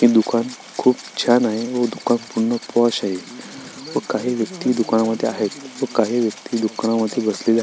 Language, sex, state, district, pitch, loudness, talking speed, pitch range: Marathi, male, Maharashtra, Sindhudurg, 115 Hz, -20 LUFS, 175 wpm, 110-120 Hz